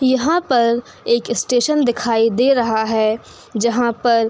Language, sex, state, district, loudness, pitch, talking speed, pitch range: Hindi, female, Uttar Pradesh, Hamirpur, -17 LUFS, 235 Hz, 155 wpm, 225-250 Hz